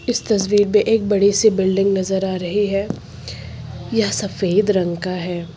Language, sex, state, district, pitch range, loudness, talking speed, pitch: Hindi, female, Uttar Pradesh, Lucknow, 175-205 Hz, -18 LUFS, 170 wpm, 195 Hz